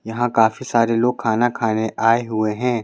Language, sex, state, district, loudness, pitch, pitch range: Hindi, male, Madhya Pradesh, Bhopal, -19 LUFS, 115 Hz, 110-120 Hz